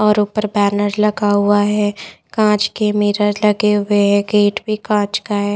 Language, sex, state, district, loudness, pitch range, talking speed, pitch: Hindi, female, Chandigarh, Chandigarh, -16 LUFS, 205-210 Hz, 185 wpm, 205 Hz